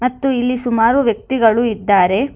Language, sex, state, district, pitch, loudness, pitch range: Kannada, female, Karnataka, Bangalore, 240 Hz, -15 LUFS, 225-250 Hz